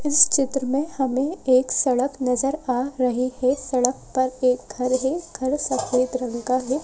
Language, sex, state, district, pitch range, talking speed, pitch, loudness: Hindi, female, Madhya Pradesh, Bhopal, 255-275 Hz, 175 wpm, 260 Hz, -22 LUFS